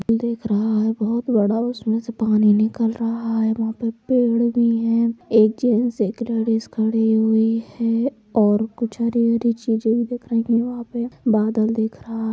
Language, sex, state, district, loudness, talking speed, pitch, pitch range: Hindi, female, Bihar, Sitamarhi, -20 LUFS, 195 wpm, 230 Hz, 220-235 Hz